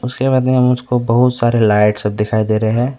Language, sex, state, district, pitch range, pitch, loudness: Hindi, male, West Bengal, Alipurduar, 110-125 Hz, 120 Hz, -14 LUFS